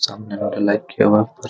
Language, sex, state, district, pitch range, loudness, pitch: Hindi, male, Bihar, Araria, 105-110 Hz, -19 LUFS, 105 Hz